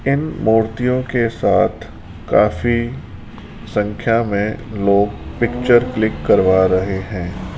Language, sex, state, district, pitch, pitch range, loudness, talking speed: Hindi, male, Rajasthan, Jaipur, 110 Hz, 100-120 Hz, -17 LUFS, 105 wpm